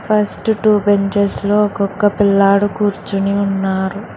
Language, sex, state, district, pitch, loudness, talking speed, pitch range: Telugu, female, Telangana, Hyderabad, 205 Hz, -15 LUFS, 115 wpm, 195-210 Hz